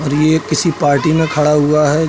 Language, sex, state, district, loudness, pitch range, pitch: Hindi, male, Uttar Pradesh, Budaun, -13 LUFS, 150-160 Hz, 150 Hz